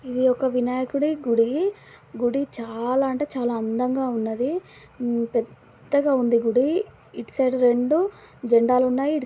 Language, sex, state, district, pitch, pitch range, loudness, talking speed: Telugu, female, Telangana, Karimnagar, 255 Hz, 240-280 Hz, -23 LUFS, 125 wpm